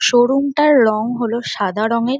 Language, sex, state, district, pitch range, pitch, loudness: Bengali, female, West Bengal, North 24 Parganas, 220-265 Hz, 240 Hz, -16 LUFS